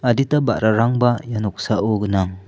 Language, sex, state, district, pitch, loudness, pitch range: Garo, male, Meghalaya, South Garo Hills, 110 Hz, -19 LUFS, 105-120 Hz